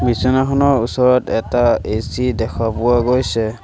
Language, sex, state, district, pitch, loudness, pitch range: Assamese, male, Assam, Sonitpur, 120 Hz, -16 LUFS, 115-125 Hz